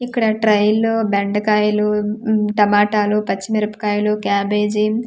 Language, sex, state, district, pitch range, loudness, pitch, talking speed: Telugu, female, Andhra Pradesh, Manyam, 210-215 Hz, -17 LUFS, 210 Hz, 120 wpm